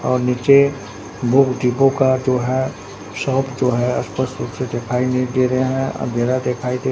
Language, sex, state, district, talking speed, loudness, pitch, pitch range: Hindi, male, Bihar, Katihar, 180 wpm, -18 LUFS, 125 Hz, 125-130 Hz